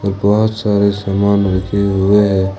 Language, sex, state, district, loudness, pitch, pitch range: Hindi, male, Jharkhand, Ranchi, -14 LUFS, 100 Hz, 95-100 Hz